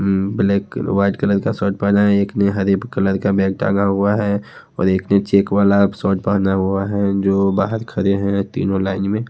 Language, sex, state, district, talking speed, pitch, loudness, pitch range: Hindi, male, Haryana, Rohtak, 220 wpm, 100 Hz, -17 LUFS, 95-100 Hz